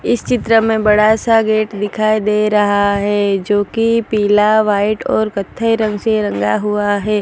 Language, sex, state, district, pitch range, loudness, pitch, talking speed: Hindi, female, Gujarat, Valsad, 205-220 Hz, -14 LUFS, 210 Hz, 175 wpm